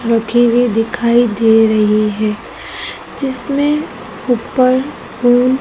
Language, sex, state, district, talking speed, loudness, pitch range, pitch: Hindi, female, Madhya Pradesh, Dhar, 95 wpm, -14 LUFS, 225-255 Hz, 240 Hz